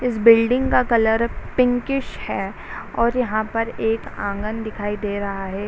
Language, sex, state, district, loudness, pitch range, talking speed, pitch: Hindi, female, Bihar, Sitamarhi, -21 LUFS, 210-245 Hz, 170 wpm, 225 Hz